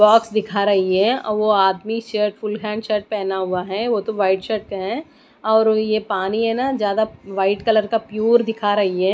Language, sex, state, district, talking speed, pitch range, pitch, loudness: Hindi, female, Odisha, Nuapada, 215 wpm, 200-225 Hz, 215 Hz, -19 LUFS